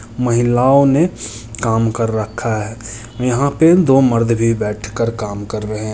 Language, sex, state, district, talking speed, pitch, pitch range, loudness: Maithili, male, Bihar, Muzaffarpur, 160 wpm, 115 Hz, 110-125 Hz, -16 LUFS